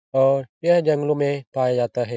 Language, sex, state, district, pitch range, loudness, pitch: Hindi, male, Bihar, Jahanabad, 125-150 Hz, -21 LUFS, 135 Hz